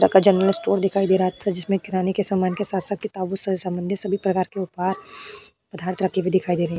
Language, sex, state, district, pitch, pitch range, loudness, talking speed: Hindi, female, Uttar Pradesh, Budaun, 190 Hz, 185-195 Hz, -22 LUFS, 230 wpm